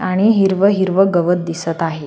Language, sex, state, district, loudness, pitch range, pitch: Marathi, female, Maharashtra, Solapur, -15 LUFS, 165-195 Hz, 185 Hz